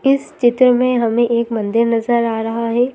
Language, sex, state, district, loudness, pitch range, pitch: Hindi, female, Madhya Pradesh, Bhopal, -16 LUFS, 230-250 Hz, 235 Hz